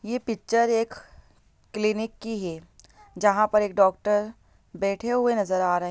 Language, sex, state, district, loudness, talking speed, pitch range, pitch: Hindi, female, Bihar, Lakhisarai, -25 LUFS, 140 wpm, 195-230 Hz, 215 Hz